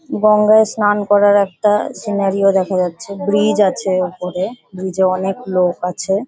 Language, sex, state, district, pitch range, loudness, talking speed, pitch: Bengali, female, West Bengal, Paschim Medinipur, 185-205 Hz, -16 LUFS, 135 wpm, 195 Hz